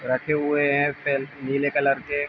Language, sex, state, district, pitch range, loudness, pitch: Hindi, male, Uttar Pradesh, Ghazipur, 140-145 Hz, -23 LUFS, 140 Hz